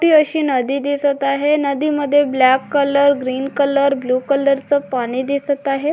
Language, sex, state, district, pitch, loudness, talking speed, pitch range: Marathi, female, Maharashtra, Dhule, 280 Hz, -17 LUFS, 170 wpm, 270-285 Hz